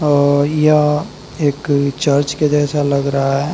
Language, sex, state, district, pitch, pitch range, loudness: Hindi, male, Uttar Pradesh, Lalitpur, 145 Hz, 140-150 Hz, -15 LUFS